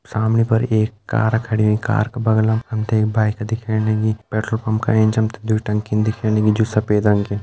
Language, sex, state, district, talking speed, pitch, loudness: Garhwali, male, Uttarakhand, Uttarkashi, 220 wpm, 110 Hz, -19 LUFS